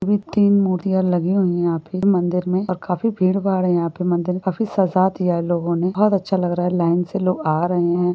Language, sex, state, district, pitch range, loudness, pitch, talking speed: Hindi, female, Jharkhand, Jamtara, 175-190 Hz, -19 LUFS, 180 Hz, 230 wpm